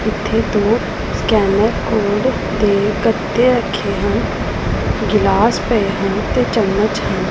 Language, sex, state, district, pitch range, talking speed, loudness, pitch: Punjabi, female, Punjab, Pathankot, 205-225 Hz, 115 wpm, -16 LUFS, 215 Hz